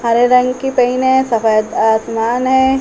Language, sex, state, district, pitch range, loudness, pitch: Hindi, female, Uttar Pradesh, Hamirpur, 230-260 Hz, -13 LUFS, 250 Hz